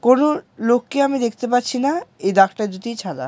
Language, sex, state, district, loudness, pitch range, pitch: Bengali, male, West Bengal, Jalpaiguri, -19 LUFS, 210-275 Hz, 240 Hz